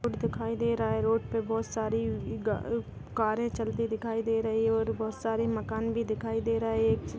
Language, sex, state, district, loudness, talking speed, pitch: Hindi, female, Chhattisgarh, Jashpur, -30 LUFS, 215 wpm, 220 Hz